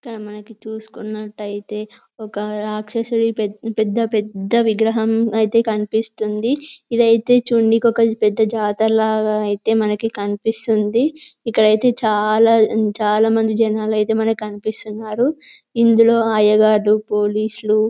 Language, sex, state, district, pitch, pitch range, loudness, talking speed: Telugu, female, Telangana, Karimnagar, 220 Hz, 215-230 Hz, -17 LUFS, 110 wpm